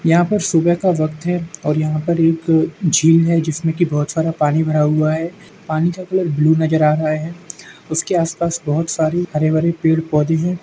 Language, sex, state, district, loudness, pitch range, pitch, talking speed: Hindi, male, Uttar Pradesh, Jalaun, -17 LUFS, 155-170 Hz, 165 Hz, 215 wpm